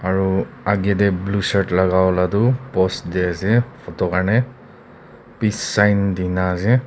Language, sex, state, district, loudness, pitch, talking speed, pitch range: Nagamese, male, Nagaland, Kohima, -19 LUFS, 100 Hz, 150 wpm, 95-110 Hz